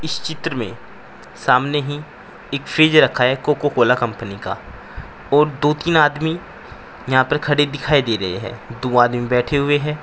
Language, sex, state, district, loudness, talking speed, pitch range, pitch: Hindi, male, Uttar Pradesh, Saharanpur, -18 LUFS, 175 wpm, 120-150 Hz, 140 Hz